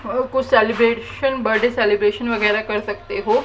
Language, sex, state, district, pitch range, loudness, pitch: Hindi, female, Haryana, Charkhi Dadri, 210-265 Hz, -19 LUFS, 230 Hz